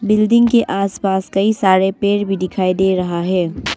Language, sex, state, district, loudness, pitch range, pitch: Hindi, female, Arunachal Pradesh, Longding, -16 LUFS, 185-205 Hz, 195 Hz